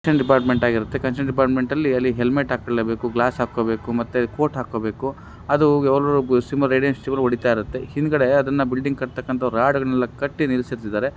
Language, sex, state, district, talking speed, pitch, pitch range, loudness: Kannada, male, Karnataka, Raichur, 115 wpm, 130 Hz, 120-140 Hz, -21 LUFS